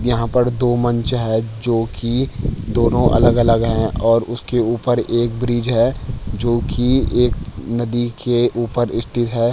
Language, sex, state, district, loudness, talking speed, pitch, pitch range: Hindi, male, Uttarakhand, Tehri Garhwal, -18 LUFS, 150 wpm, 120 Hz, 115-120 Hz